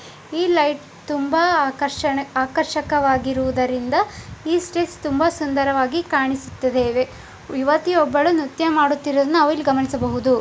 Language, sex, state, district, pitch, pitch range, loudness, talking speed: Kannada, female, Karnataka, Bijapur, 290 Hz, 265-320 Hz, -20 LUFS, 100 wpm